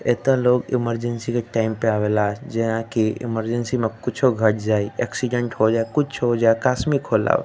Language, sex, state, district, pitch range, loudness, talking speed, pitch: Bhojpuri, male, Uttar Pradesh, Deoria, 110-125 Hz, -21 LUFS, 185 wpm, 115 Hz